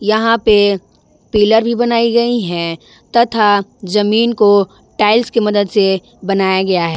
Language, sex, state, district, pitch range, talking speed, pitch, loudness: Hindi, female, Jharkhand, Ranchi, 190-230 Hz, 145 wpm, 210 Hz, -14 LUFS